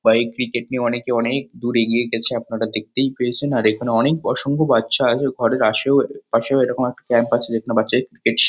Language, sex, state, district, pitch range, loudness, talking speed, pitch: Bengali, male, West Bengal, Kolkata, 115-130 Hz, -19 LUFS, 200 wpm, 120 Hz